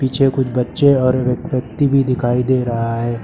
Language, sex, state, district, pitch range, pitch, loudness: Hindi, male, Uttar Pradesh, Lucknow, 120-135 Hz, 130 Hz, -16 LUFS